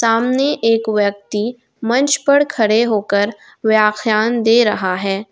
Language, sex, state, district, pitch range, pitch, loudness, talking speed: Hindi, female, Jharkhand, Garhwa, 210-235 Hz, 220 Hz, -16 LUFS, 125 wpm